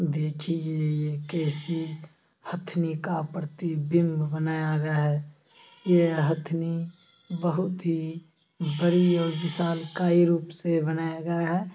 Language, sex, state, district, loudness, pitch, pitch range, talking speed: Hindi, male, Bihar, Samastipur, -27 LUFS, 165 Hz, 155-175 Hz, 105 wpm